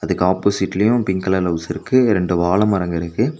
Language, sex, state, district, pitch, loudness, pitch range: Tamil, male, Tamil Nadu, Nilgiris, 95 Hz, -18 LUFS, 90-105 Hz